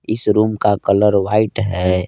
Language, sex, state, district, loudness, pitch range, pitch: Hindi, male, Jharkhand, Palamu, -16 LUFS, 100-110 Hz, 105 Hz